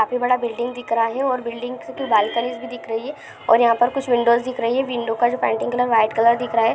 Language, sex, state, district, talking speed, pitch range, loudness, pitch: Hindi, female, Bihar, Lakhisarai, 285 wpm, 230-245 Hz, -20 LUFS, 235 Hz